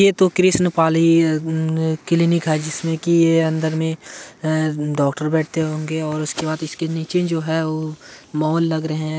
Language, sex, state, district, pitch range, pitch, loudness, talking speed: Hindi, male, Bihar, Madhepura, 155-165 Hz, 160 Hz, -19 LUFS, 175 wpm